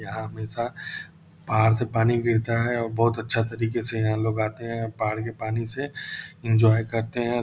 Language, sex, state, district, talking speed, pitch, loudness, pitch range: Hindi, male, Bihar, Purnia, 185 wpm, 115 Hz, -25 LUFS, 110-115 Hz